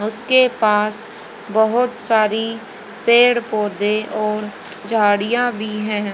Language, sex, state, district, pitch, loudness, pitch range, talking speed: Hindi, female, Haryana, Jhajjar, 215 Hz, -17 LUFS, 210-235 Hz, 100 wpm